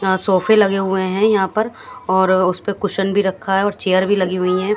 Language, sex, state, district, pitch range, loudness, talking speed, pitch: Hindi, female, Haryana, Jhajjar, 185-205 Hz, -17 LUFS, 240 wpm, 195 Hz